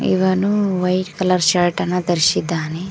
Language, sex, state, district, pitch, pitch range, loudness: Kannada, female, Karnataka, Koppal, 180 Hz, 175-185 Hz, -18 LUFS